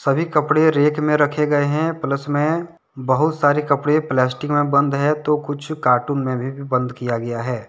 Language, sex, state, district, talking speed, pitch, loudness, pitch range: Hindi, male, Jharkhand, Deoghar, 195 wpm, 145 Hz, -19 LUFS, 130-150 Hz